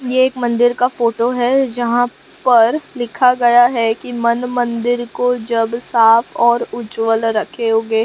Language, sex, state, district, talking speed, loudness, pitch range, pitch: Hindi, female, Maharashtra, Mumbai Suburban, 150 wpm, -15 LUFS, 230-245 Hz, 240 Hz